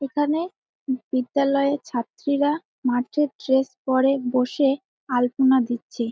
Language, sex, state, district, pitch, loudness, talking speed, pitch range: Bengali, female, West Bengal, Jalpaiguri, 265 Hz, -23 LUFS, 90 wpm, 250-285 Hz